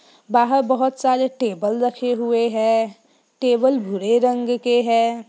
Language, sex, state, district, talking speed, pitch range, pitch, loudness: Hindi, female, Bihar, Sitamarhi, 135 wpm, 230-255 Hz, 240 Hz, -19 LUFS